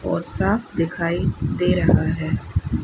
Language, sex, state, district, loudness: Hindi, female, Rajasthan, Bikaner, -21 LUFS